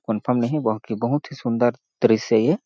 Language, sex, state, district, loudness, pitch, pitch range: Hindi, male, Chhattisgarh, Sarguja, -22 LUFS, 120 Hz, 110-145 Hz